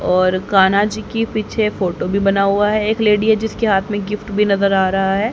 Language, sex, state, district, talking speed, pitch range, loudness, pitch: Hindi, female, Haryana, Charkhi Dadri, 250 wpm, 195-215 Hz, -16 LUFS, 205 Hz